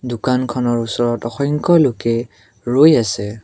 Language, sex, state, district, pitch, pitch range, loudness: Assamese, male, Assam, Kamrup Metropolitan, 120 Hz, 115-130 Hz, -16 LUFS